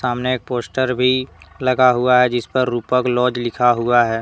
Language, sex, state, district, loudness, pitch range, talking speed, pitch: Hindi, male, Jharkhand, Deoghar, -17 LUFS, 120-130 Hz, 200 wpm, 125 Hz